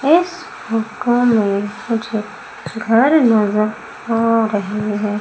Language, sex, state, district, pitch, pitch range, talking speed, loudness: Hindi, female, Madhya Pradesh, Umaria, 225 Hz, 210-235 Hz, 105 wpm, -17 LUFS